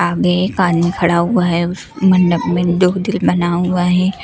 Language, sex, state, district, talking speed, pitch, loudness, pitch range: Hindi, female, Bihar, Kaimur, 170 wpm, 180 Hz, -15 LUFS, 175-185 Hz